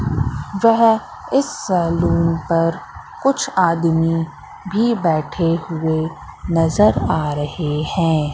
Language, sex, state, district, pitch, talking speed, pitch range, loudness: Hindi, female, Madhya Pradesh, Katni, 165 Hz, 95 wpm, 160-195 Hz, -18 LUFS